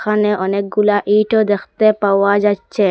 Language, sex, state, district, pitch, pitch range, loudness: Bengali, female, Assam, Hailakandi, 205 Hz, 200-210 Hz, -15 LUFS